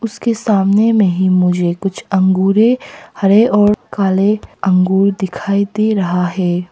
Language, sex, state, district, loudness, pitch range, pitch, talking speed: Hindi, female, Arunachal Pradesh, Papum Pare, -14 LUFS, 185-210 Hz, 195 Hz, 135 wpm